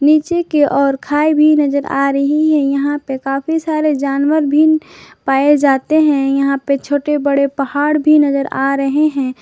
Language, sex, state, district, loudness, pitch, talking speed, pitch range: Hindi, female, Jharkhand, Garhwa, -14 LUFS, 285 Hz, 180 wpm, 275-305 Hz